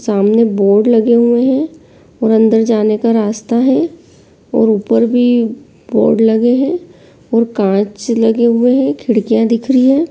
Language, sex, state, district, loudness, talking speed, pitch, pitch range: Hindi, female, Bihar, Jahanabad, -12 LUFS, 150 wpm, 230 Hz, 225-250 Hz